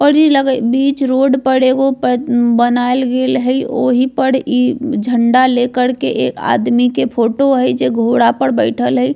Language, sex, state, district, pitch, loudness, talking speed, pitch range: Bajjika, female, Bihar, Vaishali, 255 Hz, -13 LUFS, 190 wpm, 245-265 Hz